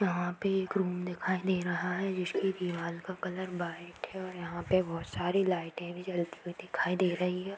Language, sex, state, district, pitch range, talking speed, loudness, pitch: Hindi, female, Bihar, Bhagalpur, 175-185 Hz, 215 wpm, -33 LUFS, 180 Hz